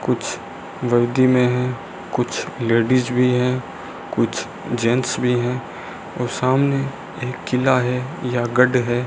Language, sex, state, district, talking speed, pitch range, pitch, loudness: Hindi, male, Rajasthan, Bikaner, 130 wpm, 120-130 Hz, 125 Hz, -20 LUFS